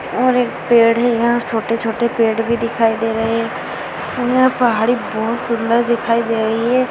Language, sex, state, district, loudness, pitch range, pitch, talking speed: Hindi, female, Bihar, Saharsa, -16 LUFS, 225-240 Hz, 235 Hz, 175 wpm